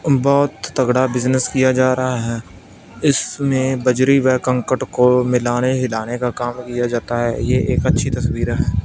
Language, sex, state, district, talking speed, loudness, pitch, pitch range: Hindi, male, Punjab, Fazilka, 165 wpm, -17 LUFS, 125 Hz, 120-130 Hz